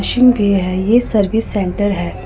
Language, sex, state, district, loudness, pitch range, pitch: Hindi, female, Punjab, Pathankot, -15 LUFS, 185-225 Hz, 205 Hz